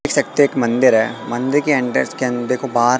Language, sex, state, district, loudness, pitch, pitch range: Hindi, male, Madhya Pradesh, Katni, -17 LUFS, 125 Hz, 120-135 Hz